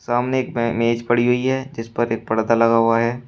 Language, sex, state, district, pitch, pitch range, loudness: Hindi, male, Uttar Pradesh, Shamli, 115 Hz, 115-125 Hz, -19 LUFS